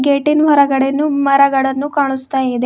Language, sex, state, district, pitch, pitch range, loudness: Kannada, female, Karnataka, Bidar, 275 Hz, 270-285 Hz, -14 LUFS